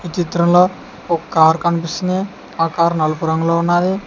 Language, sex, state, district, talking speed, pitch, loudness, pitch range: Telugu, male, Telangana, Hyderabad, 145 wpm, 170 Hz, -16 LUFS, 165-175 Hz